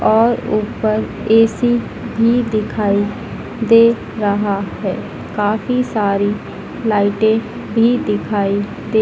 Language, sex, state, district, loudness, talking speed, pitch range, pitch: Hindi, female, Madhya Pradesh, Dhar, -16 LUFS, 95 wpm, 205-230 Hz, 220 Hz